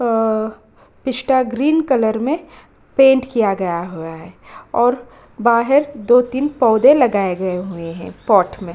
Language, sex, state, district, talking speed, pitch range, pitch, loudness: Hindi, female, Bihar, Kishanganj, 145 wpm, 195-260 Hz, 235 Hz, -16 LUFS